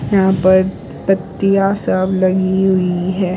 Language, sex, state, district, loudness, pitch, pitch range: Hindi, female, Gujarat, Valsad, -15 LUFS, 190 Hz, 185-195 Hz